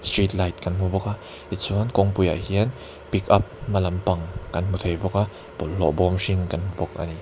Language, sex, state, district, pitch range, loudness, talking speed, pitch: Mizo, male, Mizoram, Aizawl, 90-100 Hz, -24 LUFS, 205 wpm, 95 Hz